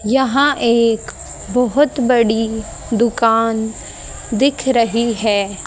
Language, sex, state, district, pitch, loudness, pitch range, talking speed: Hindi, female, Haryana, Rohtak, 230 Hz, -16 LUFS, 220-250 Hz, 85 wpm